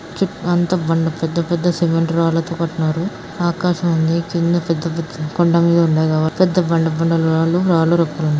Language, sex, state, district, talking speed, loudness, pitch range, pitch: Telugu, female, Andhra Pradesh, Anantapur, 145 wpm, -17 LUFS, 165-175 Hz, 165 Hz